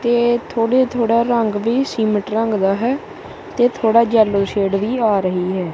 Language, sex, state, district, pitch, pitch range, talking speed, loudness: Punjabi, male, Punjab, Kapurthala, 225 Hz, 205-240 Hz, 180 wpm, -17 LUFS